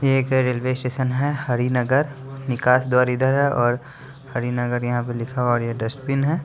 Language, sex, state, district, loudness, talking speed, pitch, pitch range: Hindi, male, Bihar, West Champaran, -21 LUFS, 185 wpm, 130 Hz, 120-135 Hz